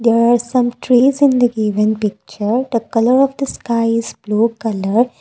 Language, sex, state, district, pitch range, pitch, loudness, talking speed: English, female, Assam, Kamrup Metropolitan, 220-250 Hz, 230 Hz, -16 LUFS, 185 wpm